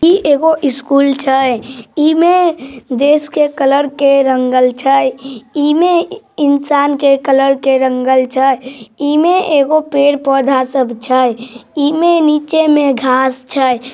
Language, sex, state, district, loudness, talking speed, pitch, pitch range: Maithili, male, Bihar, Samastipur, -12 LUFS, 140 wpm, 275 Hz, 260-295 Hz